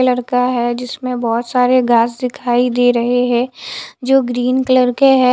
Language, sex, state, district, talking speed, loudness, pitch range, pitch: Hindi, female, Haryana, Charkhi Dadri, 170 wpm, -15 LUFS, 245-255 Hz, 250 Hz